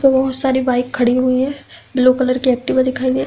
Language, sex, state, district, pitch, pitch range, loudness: Hindi, female, Uttar Pradesh, Hamirpur, 255 Hz, 255-265 Hz, -16 LUFS